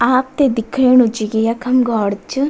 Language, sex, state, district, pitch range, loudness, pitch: Garhwali, female, Uttarakhand, Tehri Garhwal, 225-260 Hz, -15 LUFS, 250 Hz